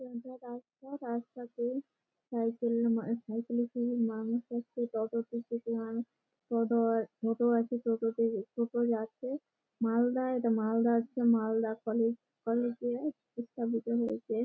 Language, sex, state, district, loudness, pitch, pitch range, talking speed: Bengali, female, West Bengal, Malda, -33 LUFS, 235 Hz, 230-240 Hz, 135 wpm